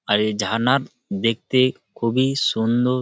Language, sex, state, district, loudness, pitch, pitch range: Bengali, male, West Bengal, Malda, -21 LUFS, 115 Hz, 110-130 Hz